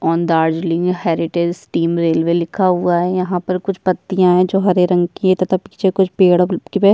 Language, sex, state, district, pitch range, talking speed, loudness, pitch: Hindi, female, Bihar, Kishanganj, 170-185 Hz, 200 wpm, -16 LUFS, 180 Hz